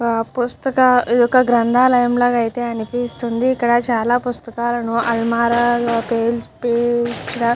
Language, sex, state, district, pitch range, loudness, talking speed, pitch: Telugu, female, Andhra Pradesh, Chittoor, 235-245 Hz, -17 LUFS, 110 wpm, 240 Hz